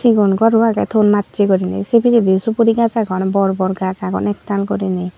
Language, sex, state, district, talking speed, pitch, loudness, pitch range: Chakma, female, Tripura, Unakoti, 195 wpm, 200 Hz, -15 LUFS, 190-225 Hz